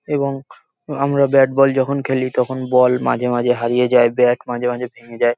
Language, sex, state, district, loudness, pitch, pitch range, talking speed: Bengali, male, West Bengal, North 24 Parganas, -17 LUFS, 125 Hz, 125-135 Hz, 190 wpm